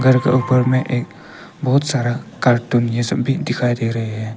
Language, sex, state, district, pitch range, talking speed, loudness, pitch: Hindi, male, Arunachal Pradesh, Papum Pare, 120-130 Hz, 205 wpm, -18 LUFS, 125 Hz